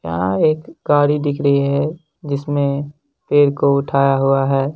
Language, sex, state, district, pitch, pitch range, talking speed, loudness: Hindi, male, Bihar, Lakhisarai, 140 Hz, 140-145 Hz, 150 wpm, -17 LUFS